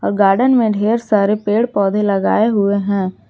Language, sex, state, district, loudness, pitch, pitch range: Hindi, female, Jharkhand, Garhwa, -15 LUFS, 205 Hz, 200-220 Hz